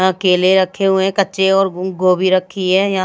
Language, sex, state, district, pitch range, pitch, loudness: Hindi, female, Bihar, Patna, 185-195 Hz, 190 Hz, -15 LUFS